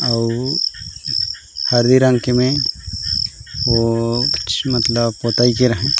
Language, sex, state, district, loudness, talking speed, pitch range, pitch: Chhattisgarhi, male, Chhattisgarh, Raigarh, -17 LUFS, 130 wpm, 115-125 Hz, 120 Hz